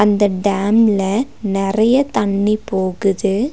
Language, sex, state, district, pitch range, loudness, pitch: Tamil, female, Tamil Nadu, Nilgiris, 195-215 Hz, -16 LUFS, 205 Hz